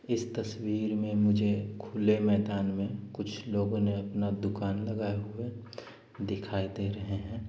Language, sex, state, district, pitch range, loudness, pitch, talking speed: Hindi, male, Bihar, Araria, 100-110 Hz, -32 LUFS, 105 Hz, 145 wpm